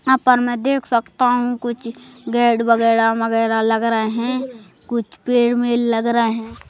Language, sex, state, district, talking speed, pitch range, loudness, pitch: Hindi, male, Madhya Pradesh, Bhopal, 170 wpm, 230-245 Hz, -18 LUFS, 235 Hz